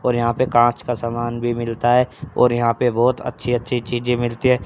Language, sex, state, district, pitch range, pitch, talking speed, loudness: Hindi, male, Haryana, Charkhi Dadri, 120-125 Hz, 120 Hz, 230 wpm, -19 LUFS